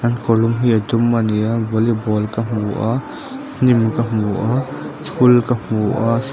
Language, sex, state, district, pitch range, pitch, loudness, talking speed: Mizo, male, Mizoram, Aizawl, 110-120 Hz, 115 Hz, -17 LUFS, 190 wpm